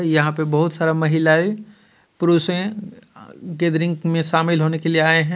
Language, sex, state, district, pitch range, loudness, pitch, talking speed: Hindi, male, Jharkhand, Ranchi, 160-180 Hz, -19 LUFS, 165 Hz, 155 wpm